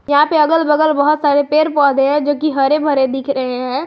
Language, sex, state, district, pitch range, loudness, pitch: Hindi, female, Jharkhand, Garhwa, 275-305 Hz, -14 LUFS, 290 Hz